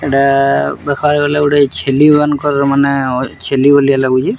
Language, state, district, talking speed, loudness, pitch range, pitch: Sambalpuri, Odisha, Sambalpur, 135 wpm, -12 LUFS, 135-145 Hz, 140 Hz